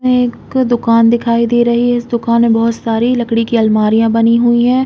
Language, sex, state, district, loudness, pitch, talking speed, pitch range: Hindi, female, Uttar Pradesh, Hamirpur, -12 LUFS, 235 Hz, 220 wpm, 230-240 Hz